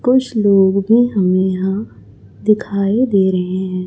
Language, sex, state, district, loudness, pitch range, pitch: Hindi, male, Chhattisgarh, Raipur, -15 LUFS, 185-215 Hz, 195 Hz